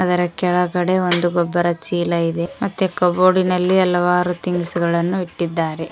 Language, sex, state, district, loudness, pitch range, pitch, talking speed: Kannada, female, Karnataka, Koppal, -18 LUFS, 170-180 Hz, 180 Hz, 110 wpm